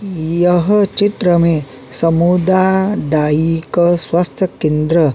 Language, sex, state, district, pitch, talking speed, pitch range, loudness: Hindi, male, Uttarakhand, Tehri Garhwal, 170 Hz, 80 wpm, 160-185 Hz, -14 LUFS